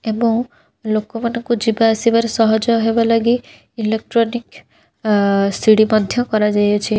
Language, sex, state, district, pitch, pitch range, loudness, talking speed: Odia, female, Odisha, Khordha, 225 Hz, 215-230 Hz, -16 LUFS, 110 wpm